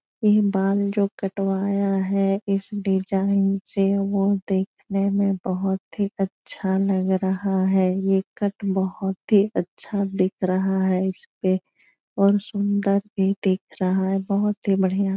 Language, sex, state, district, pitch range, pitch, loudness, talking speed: Hindi, female, Bihar, Supaul, 190-200 Hz, 195 Hz, -23 LUFS, 140 wpm